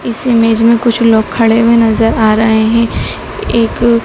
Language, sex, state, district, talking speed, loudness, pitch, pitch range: Hindi, female, Madhya Pradesh, Dhar, 180 wpm, -10 LUFS, 230 Hz, 225-235 Hz